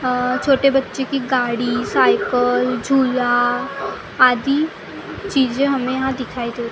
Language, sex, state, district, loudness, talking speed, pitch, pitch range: Hindi, female, Maharashtra, Gondia, -18 LUFS, 125 wpm, 255 Hz, 245-270 Hz